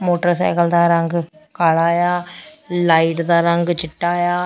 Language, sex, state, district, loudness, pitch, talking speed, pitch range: Punjabi, female, Punjab, Fazilka, -17 LUFS, 170 Hz, 135 wpm, 170-175 Hz